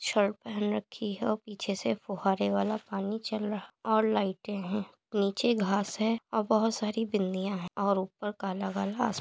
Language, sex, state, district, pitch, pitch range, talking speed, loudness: Hindi, female, Uttar Pradesh, Muzaffarnagar, 205 Hz, 195-220 Hz, 190 wpm, -31 LUFS